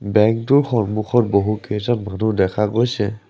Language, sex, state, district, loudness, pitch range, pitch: Assamese, male, Assam, Sonitpur, -18 LUFS, 105-115 Hz, 110 Hz